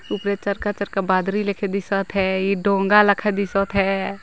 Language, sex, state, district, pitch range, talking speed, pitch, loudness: Hindi, female, Chhattisgarh, Jashpur, 195-200 Hz, 100 wpm, 200 Hz, -20 LUFS